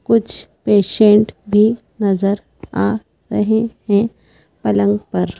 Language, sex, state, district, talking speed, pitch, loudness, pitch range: Hindi, female, Madhya Pradesh, Bhopal, 100 wpm, 205 Hz, -16 LUFS, 190-220 Hz